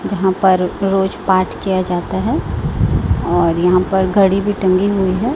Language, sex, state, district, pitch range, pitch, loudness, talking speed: Hindi, female, Chhattisgarh, Raipur, 185-195 Hz, 190 Hz, -16 LUFS, 170 wpm